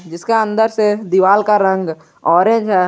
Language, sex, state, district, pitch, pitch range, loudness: Hindi, male, Jharkhand, Garhwa, 200 Hz, 180-215 Hz, -14 LUFS